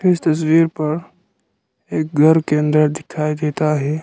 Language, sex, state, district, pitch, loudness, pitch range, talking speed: Hindi, male, Arunachal Pradesh, Lower Dibang Valley, 155 Hz, -17 LUFS, 150-160 Hz, 150 wpm